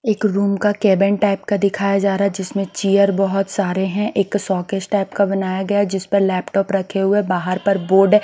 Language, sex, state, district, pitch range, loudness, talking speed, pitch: Hindi, female, Maharashtra, Washim, 195-205 Hz, -18 LUFS, 210 wpm, 195 Hz